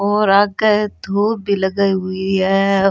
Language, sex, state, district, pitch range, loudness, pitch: Rajasthani, female, Rajasthan, Churu, 195-205 Hz, -16 LUFS, 200 Hz